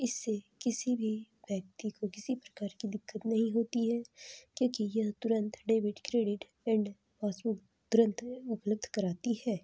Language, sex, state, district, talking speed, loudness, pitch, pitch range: Hindi, female, Chhattisgarh, Balrampur, 145 wpm, -34 LUFS, 220 Hz, 210-235 Hz